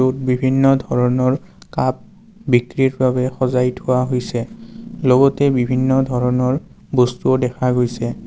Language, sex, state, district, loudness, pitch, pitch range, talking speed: Assamese, male, Assam, Kamrup Metropolitan, -17 LUFS, 130 Hz, 125-135 Hz, 110 wpm